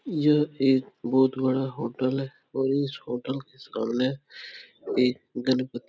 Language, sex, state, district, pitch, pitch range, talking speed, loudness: Hindi, male, Uttar Pradesh, Etah, 130 Hz, 125-135 Hz, 140 wpm, -26 LUFS